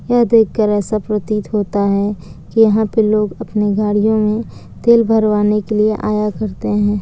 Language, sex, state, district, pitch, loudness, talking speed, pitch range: Hindi, female, Bihar, Kishanganj, 210 Hz, -15 LUFS, 170 wpm, 210-220 Hz